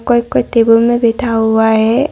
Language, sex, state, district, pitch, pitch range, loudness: Hindi, female, Arunachal Pradesh, Longding, 230 Hz, 225-240 Hz, -12 LUFS